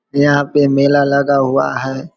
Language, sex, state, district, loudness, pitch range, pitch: Hindi, male, Bihar, Vaishali, -14 LUFS, 140-145 Hz, 140 Hz